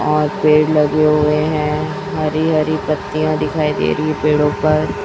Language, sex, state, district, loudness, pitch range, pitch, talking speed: Hindi, female, Chhattisgarh, Raipur, -16 LUFS, 150-155 Hz, 155 Hz, 165 wpm